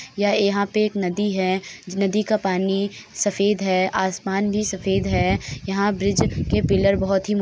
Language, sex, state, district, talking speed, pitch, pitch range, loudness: Hindi, female, Uttar Pradesh, Hamirpur, 180 wpm, 195 Hz, 185-205 Hz, -21 LUFS